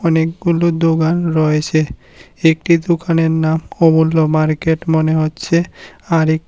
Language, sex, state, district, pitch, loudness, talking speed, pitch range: Bengali, male, Tripura, West Tripura, 160 Hz, -15 LUFS, 110 wpm, 160-165 Hz